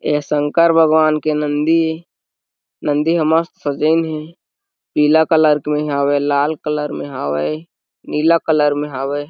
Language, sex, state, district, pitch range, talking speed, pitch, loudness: Chhattisgarhi, male, Chhattisgarh, Jashpur, 145-160 Hz, 150 wpm, 150 Hz, -16 LUFS